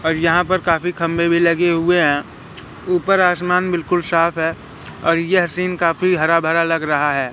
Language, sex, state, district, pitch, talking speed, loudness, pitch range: Hindi, male, Madhya Pradesh, Katni, 170 Hz, 190 wpm, -17 LUFS, 165-180 Hz